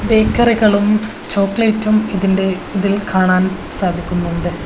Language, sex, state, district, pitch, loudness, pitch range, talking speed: Malayalam, female, Kerala, Kozhikode, 200 Hz, -15 LUFS, 185-215 Hz, 75 wpm